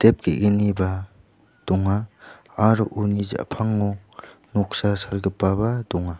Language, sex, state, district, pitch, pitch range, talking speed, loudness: Garo, male, Meghalaya, West Garo Hills, 100 Hz, 95-105 Hz, 85 wpm, -23 LUFS